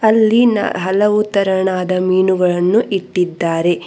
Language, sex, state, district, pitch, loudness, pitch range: Kannada, female, Karnataka, Bangalore, 190 Hz, -15 LUFS, 180-210 Hz